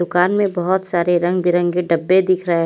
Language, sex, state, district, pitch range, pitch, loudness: Hindi, female, Haryana, Charkhi Dadri, 175-185 Hz, 175 Hz, -17 LUFS